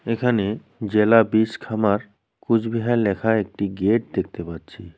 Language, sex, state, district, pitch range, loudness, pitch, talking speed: Bengali, male, West Bengal, Cooch Behar, 100-115 Hz, -21 LUFS, 110 Hz, 120 wpm